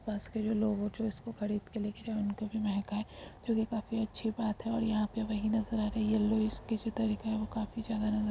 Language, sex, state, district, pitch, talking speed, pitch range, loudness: Hindi, female, Rajasthan, Churu, 215 Hz, 210 wpm, 215-225 Hz, -34 LUFS